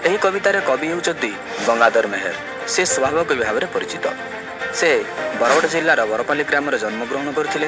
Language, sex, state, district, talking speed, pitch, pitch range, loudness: Odia, male, Odisha, Malkangiri, 135 wpm, 155 Hz, 145-200 Hz, -19 LUFS